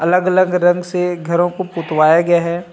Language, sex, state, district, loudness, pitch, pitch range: Hindi, male, Chhattisgarh, Rajnandgaon, -15 LUFS, 175 Hz, 170-180 Hz